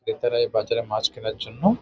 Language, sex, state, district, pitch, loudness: Bengali, male, West Bengal, Jhargram, 185 Hz, -24 LUFS